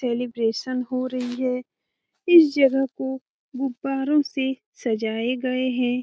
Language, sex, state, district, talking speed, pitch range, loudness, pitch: Hindi, female, Bihar, Jamui, 120 wpm, 245-270 Hz, -23 LUFS, 255 Hz